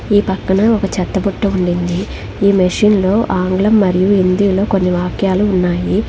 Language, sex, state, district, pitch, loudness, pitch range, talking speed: Telugu, female, Telangana, Hyderabad, 195 Hz, -14 LUFS, 185-200 Hz, 150 wpm